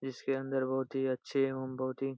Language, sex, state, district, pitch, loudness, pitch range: Hindi, male, Bihar, Jahanabad, 135 Hz, -34 LUFS, 130-135 Hz